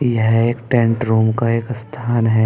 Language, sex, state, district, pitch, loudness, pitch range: Hindi, male, Uttar Pradesh, Saharanpur, 115 Hz, -17 LUFS, 110-120 Hz